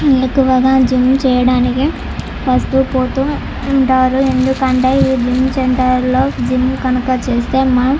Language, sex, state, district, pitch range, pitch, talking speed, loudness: Telugu, female, Andhra Pradesh, Chittoor, 255-265 Hz, 260 Hz, 105 wpm, -14 LUFS